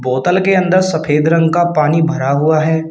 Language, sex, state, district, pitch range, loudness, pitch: Hindi, male, Uttar Pradesh, Shamli, 150-175 Hz, -13 LUFS, 160 Hz